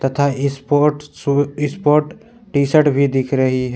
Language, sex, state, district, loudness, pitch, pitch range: Hindi, male, Jharkhand, Palamu, -17 LUFS, 140 Hz, 135-150 Hz